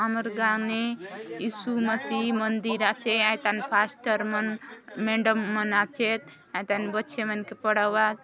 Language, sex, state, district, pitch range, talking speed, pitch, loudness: Halbi, female, Chhattisgarh, Bastar, 210-225 Hz, 140 wpm, 220 Hz, -26 LUFS